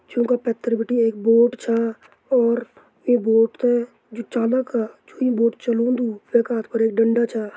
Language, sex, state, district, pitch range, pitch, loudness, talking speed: Garhwali, male, Uttarakhand, Tehri Garhwal, 225-245 Hz, 235 Hz, -20 LUFS, 190 wpm